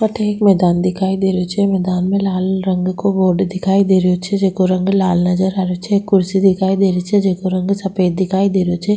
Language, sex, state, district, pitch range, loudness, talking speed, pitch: Rajasthani, female, Rajasthan, Nagaur, 185-195 Hz, -15 LUFS, 245 wpm, 190 Hz